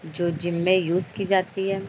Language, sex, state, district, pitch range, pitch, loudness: Hindi, female, Bihar, Bhagalpur, 175-195 Hz, 185 Hz, -24 LUFS